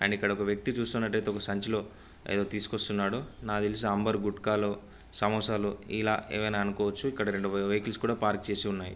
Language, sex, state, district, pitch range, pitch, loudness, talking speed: Telugu, male, Andhra Pradesh, Anantapur, 100-110 Hz, 105 Hz, -30 LUFS, 175 wpm